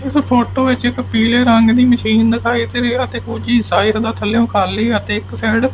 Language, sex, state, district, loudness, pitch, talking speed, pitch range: Punjabi, male, Punjab, Fazilka, -15 LUFS, 235 Hz, 200 wpm, 220-245 Hz